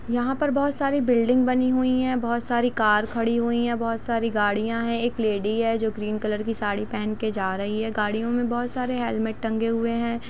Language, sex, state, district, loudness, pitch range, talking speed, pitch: Hindi, female, Jharkhand, Jamtara, -24 LUFS, 220-240 Hz, 225 wpm, 230 Hz